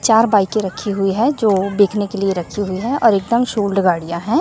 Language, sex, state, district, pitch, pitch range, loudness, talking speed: Hindi, female, Chhattisgarh, Raipur, 205 Hz, 195-225 Hz, -17 LUFS, 215 wpm